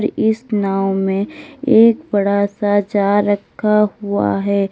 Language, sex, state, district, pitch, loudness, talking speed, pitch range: Hindi, female, Uttar Pradesh, Lalitpur, 205 Hz, -16 LUFS, 125 wpm, 200-215 Hz